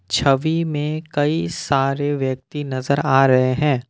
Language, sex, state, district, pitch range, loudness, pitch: Hindi, male, Assam, Kamrup Metropolitan, 130-150 Hz, -19 LUFS, 140 Hz